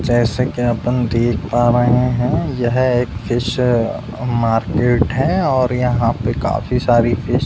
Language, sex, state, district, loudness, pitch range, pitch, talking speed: Hindi, male, Uttar Pradesh, Budaun, -17 LUFS, 120-125 Hz, 120 Hz, 155 wpm